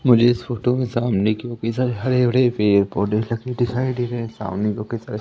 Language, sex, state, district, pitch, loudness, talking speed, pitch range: Hindi, male, Madhya Pradesh, Umaria, 120 Hz, -21 LUFS, 205 wpm, 105-125 Hz